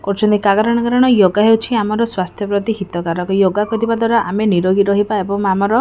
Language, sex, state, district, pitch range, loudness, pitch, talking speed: Odia, female, Odisha, Khordha, 195-225 Hz, -15 LUFS, 205 Hz, 205 wpm